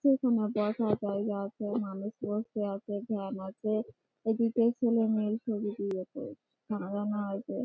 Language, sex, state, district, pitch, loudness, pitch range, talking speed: Bengali, female, West Bengal, Malda, 210 Hz, -32 LUFS, 205-225 Hz, 140 wpm